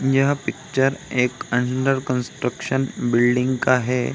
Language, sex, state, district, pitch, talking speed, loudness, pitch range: Hindi, male, Bihar, Samastipur, 130 Hz, 115 wpm, -21 LUFS, 125-135 Hz